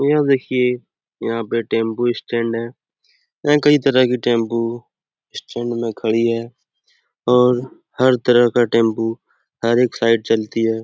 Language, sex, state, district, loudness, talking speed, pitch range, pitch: Hindi, male, Bihar, Jamui, -18 LUFS, 145 wpm, 115-125 Hz, 120 Hz